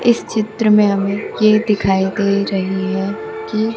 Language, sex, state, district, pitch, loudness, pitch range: Hindi, female, Bihar, Kaimur, 205 Hz, -16 LUFS, 200-220 Hz